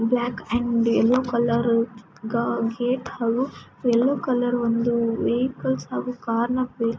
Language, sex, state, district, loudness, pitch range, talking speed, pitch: Kannada, female, Karnataka, Mysore, -23 LUFS, 230-245 Hz, 105 wpm, 235 Hz